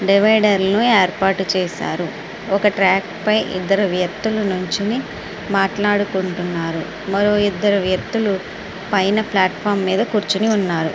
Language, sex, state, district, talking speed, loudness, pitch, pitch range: Telugu, male, Andhra Pradesh, Srikakulam, 95 wpm, -18 LUFS, 195 Hz, 190-210 Hz